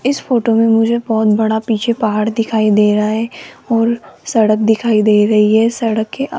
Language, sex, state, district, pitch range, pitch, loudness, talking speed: Hindi, female, Rajasthan, Jaipur, 215-230 Hz, 225 Hz, -14 LUFS, 195 wpm